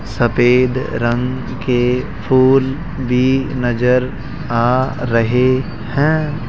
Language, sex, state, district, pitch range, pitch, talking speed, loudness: Hindi, male, Rajasthan, Jaipur, 120-130 Hz, 125 Hz, 85 wpm, -16 LUFS